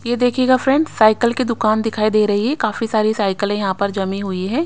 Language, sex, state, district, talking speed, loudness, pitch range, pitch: Hindi, female, Haryana, Rohtak, 230 wpm, -17 LUFS, 205-245 Hz, 215 Hz